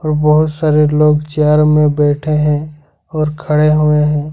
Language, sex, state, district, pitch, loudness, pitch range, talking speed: Hindi, male, Jharkhand, Ranchi, 150 Hz, -13 LUFS, 150-155 Hz, 150 wpm